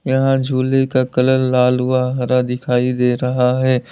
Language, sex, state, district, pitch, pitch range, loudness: Hindi, male, Uttar Pradesh, Lalitpur, 125 Hz, 125-130 Hz, -16 LUFS